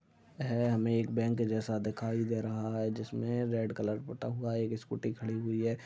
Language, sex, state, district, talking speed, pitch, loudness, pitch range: Hindi, male, Uttar Pradesh, Ghazipur, 195 wpm, 115 Hz, -34 LUFS, 110-115 Hz